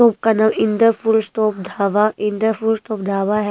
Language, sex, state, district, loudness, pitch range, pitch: Hindi, female, Himachal Pradesh, Shimla, -17 LUFS, 210-220 Hz, 215 Hz